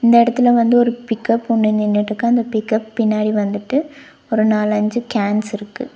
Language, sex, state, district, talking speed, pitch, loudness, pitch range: Tamil, female, Tamil Nadu, Nilgiris, 160 wpm, 225 Hz, -17 LUFS, 215-240 Hz